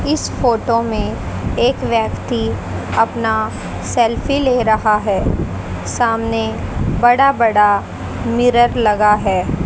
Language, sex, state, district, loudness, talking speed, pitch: Hindi, female, Haryana, Jhajjar, -16 LUFS, 100 wpm, 205 Hz